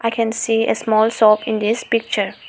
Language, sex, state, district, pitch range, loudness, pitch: English, female, Arunachal Pradesh, Lower Dibang Valley, 215-230 Hz, -17 LUFS, 225 Hz